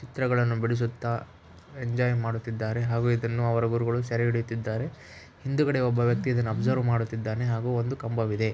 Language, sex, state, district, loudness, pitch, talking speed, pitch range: Kannada, male, Karnataka, Raichur, -27 LUFS, 115 Hz, 135 wpm, 115-125 Hz